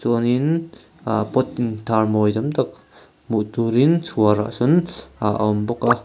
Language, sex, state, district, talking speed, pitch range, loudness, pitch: Mizo, male, Mizoram, Aizawl, 120 wpm, 110-130 Hz, -20 LUFS, 115 Hz